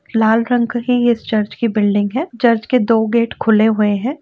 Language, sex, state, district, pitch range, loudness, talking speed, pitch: Hindi, female, Uttar Pradesh, Etah, 220-240 Hz, -15 LUFS, 200 wpm, 230 Hz